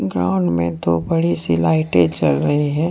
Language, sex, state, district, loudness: Hindi, male, Jharkhand, Deoghar, -18 LUFS